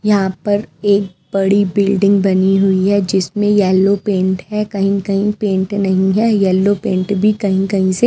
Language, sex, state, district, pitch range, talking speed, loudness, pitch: Hindi, female, Himachal Pradesh, Shimla, 190-205 Hz, 170 wpm, -15 LUFS, 200 Hz